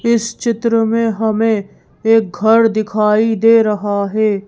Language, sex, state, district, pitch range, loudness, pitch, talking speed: Hindi, female, Madhya Pradesh, Bhopal, 210-225 Hz, -14 LUFS, 220 Hz, 135 wpm